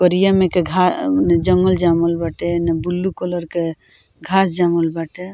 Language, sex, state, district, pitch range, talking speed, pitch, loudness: Bhojpuri, female, Bihar, Muzaffarpur, 170-185 Hz, 155 wpm, 175 Hz, -17 LUFS